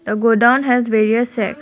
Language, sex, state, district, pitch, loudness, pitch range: English, female, Assam, Kamrup Metropolitan, 230 Hz, -15 LUFS, 220-245 Hz